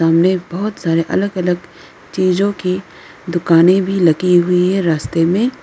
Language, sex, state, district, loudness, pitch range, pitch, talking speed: Hindi, female, Arunachal Pradesh, Lower Dibang Valley, -15 LUFS, 170-190 Hz, 180 Hz, 150 wpm